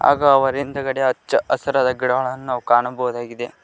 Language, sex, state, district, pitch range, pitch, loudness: Kannada, male, Karnataka, Koppal, 125-135 Hz, 130 Hz, -19 LUFS